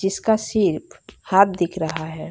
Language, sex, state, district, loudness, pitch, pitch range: Hindi, female, Bihar, Darbhanga, -20 LUFS, 195 Hz, 165-205 Hz